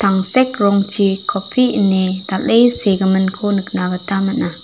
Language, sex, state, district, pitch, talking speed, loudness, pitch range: Garo, female, Meghalaya, South Garo Hills, 195 Hz, 130 wpm, -14 LUFS, 190-205 Hz